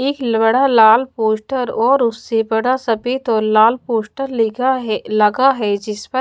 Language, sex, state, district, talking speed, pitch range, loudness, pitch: Hindi, female, Bihar, Katihar, 165 wpm, 220-260 Hz, -16 LUFS, 230 Hz